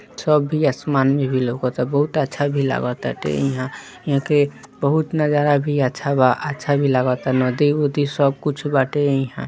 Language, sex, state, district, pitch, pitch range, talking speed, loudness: Bhojpuri, male, Bihar, East Champaran, 140 Hz, 130-145 Hz, 175 wpm, -19 LUFS